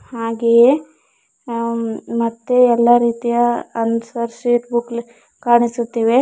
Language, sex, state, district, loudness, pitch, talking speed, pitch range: Kannada, female, Karnataka, Bidar, -17 LUFS, 235 Hz, 75 wpm, 230-240 Hz